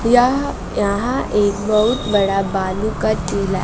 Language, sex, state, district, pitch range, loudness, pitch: Hindi, female, Bihar, West Champaran, 195-225 Hz, -18 LUFS, 205 Hz